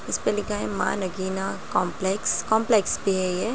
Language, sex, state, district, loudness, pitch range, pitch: Hindi, female, Bihar, Jahanabad, -25 LUFS, 190-215 Hz, 195 Hz